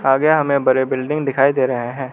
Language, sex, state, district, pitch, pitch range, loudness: Hindi, male, Arunachal Pradesh, Lower Dibang Valley, 135 Hz, 130-140 Hz, -17 LUFS